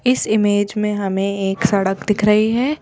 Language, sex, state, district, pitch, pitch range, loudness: Hindi, female, Madhya Pradesh, Bhopal, 205 Hz, 195-215 Hz, -17 LUFS